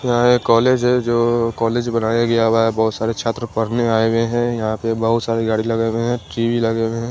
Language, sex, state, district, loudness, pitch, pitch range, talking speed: Hindi, male, Chandigarh, Chandigarh, -18 LUFS, 115 Hz, 115-120 Hz, 245 wpm